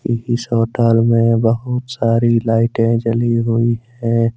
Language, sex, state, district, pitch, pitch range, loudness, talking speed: Hindi, male, Jharkhand, Deoghar, 115 Hz, 115-120 Hz, -16 LUFS, 125 wpm